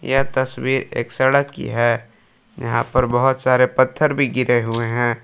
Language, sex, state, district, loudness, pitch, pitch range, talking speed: Hindi, male, Jharkhand, Palamu, -19 LUFS, 130 Hz, 120-135 Hz, 170 wpm